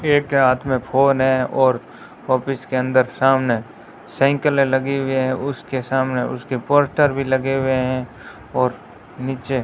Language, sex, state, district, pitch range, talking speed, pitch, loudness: Hindi, female, Rajasthan, Bikaner, 130-135 Hz, 160 wpm, 130 Hz, -19 LUFS